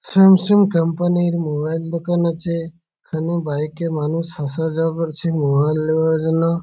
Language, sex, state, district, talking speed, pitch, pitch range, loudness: Bengali, male, West Bengal, Malda, 145 wpm, 165 Hz, 160-170 Hz, -19 LUFS